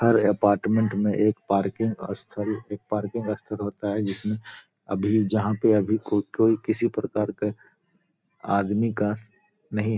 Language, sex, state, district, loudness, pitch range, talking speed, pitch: Hindi, male, Bihar, Gopalganj, -25 LUFS, 105-110 Hz, 120 wpm, 105 Hz